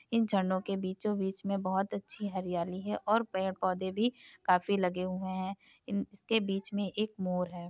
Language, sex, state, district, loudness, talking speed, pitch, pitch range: Hindi, female, Uttar Pradesh, Etah, -33 LUFS, 195 wpm, 195 Hz, 185-205 Hz